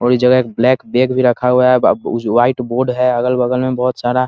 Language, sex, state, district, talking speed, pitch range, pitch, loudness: Hindi, male, Bihar, Muzaffarpur, 250 wpm, 120-125 Hz, 125 Hz, -14 LUFS